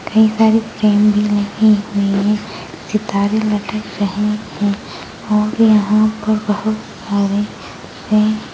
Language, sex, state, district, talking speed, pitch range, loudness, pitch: Hindi, female, Uttarakhand, Uttarkashi, 120 wpm, 205-215 Hz, -16 LUFS, 210 Hz